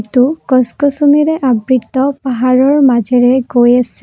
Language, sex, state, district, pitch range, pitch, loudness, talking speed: Assamese, female, Assam, Kamrup Metropolitan, 245-280 Hz, 255 Hz, -11 LUFS, 105 wpm